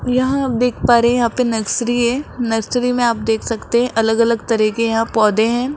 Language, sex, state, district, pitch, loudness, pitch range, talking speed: Hindi, male, Rajasthan, Jaipur, 235 Hz, -16 LUFS, 225-245 Hz, 230 wpm